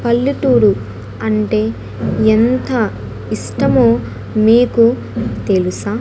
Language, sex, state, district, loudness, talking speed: Telugu, female, Andhra Pradesh, Annamaya, -15 LUFS, 60 wpm